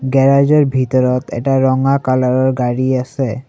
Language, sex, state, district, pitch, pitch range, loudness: Assamese, male, Assam, Sonitpur, 130 Hz, 125-135 Hz, -14 LUFS